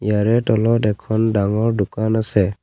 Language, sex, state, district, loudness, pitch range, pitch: Assamese, male, Assam, Kamrup Metropolitan, -18 LUFS, 105-110 Hz, 110 Hz